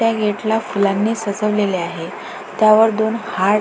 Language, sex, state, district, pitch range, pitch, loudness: Marathi, female, Maharashtra, Pune, 205-220 Hz, 215 Hz, -17 LUFS